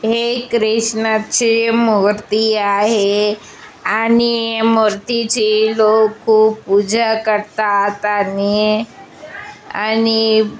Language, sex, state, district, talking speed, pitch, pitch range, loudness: Marathi, female, Maharashtra, Chandrapur, 80 wpm, 220 Hz, 210-225 Hz, -15 LUFS